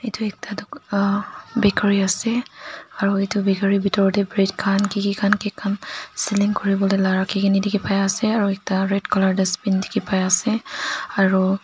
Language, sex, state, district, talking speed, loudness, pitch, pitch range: Nagamese, female, Nagaland, Dimapur, 155 wpm, -20 LUFS, 200 Hz, 195-205 Hz